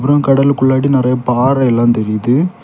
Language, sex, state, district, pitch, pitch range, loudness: Tamil, male, Tamil Nadu, Kanyakumari, 130 Hz, 125-140 Hz, -12 LUFS